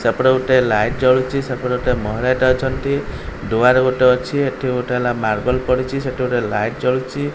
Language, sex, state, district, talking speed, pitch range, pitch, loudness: Odia, male, Odisha, Khordha, 165 wpm, 125-130 Hz, 125 Hz, -17 LUFS